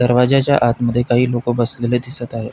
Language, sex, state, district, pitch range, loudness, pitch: Marathi, male, Maharashtra, Pune, 120-125 Hz, -17 LUFS, 120 Hz